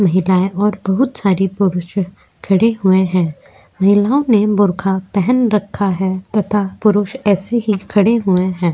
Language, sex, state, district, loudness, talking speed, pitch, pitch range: Hindi, female, Uttar Pradesh, Jyotiba Phule Nagar, -15 LUFS, 145 wpm, 195 Hz, 190-210 Hz